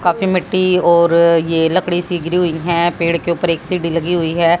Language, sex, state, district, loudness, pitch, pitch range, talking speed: Hindi, female, Haryana, Jhajjar, -15 LUFS, 170 Hz, 170-180 Hz, 220 wpm